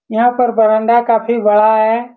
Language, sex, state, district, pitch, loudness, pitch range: Hindi, male, Bihar, Saran, 230 Hz, -12 LUFS, 220-235 Hz